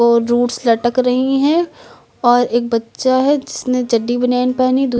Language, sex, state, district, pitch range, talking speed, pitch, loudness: Hindi, female, Uttar Pradesh, Lucknow, 240-255 Hz, 155 wpm, 250 Hz, -15 LUFS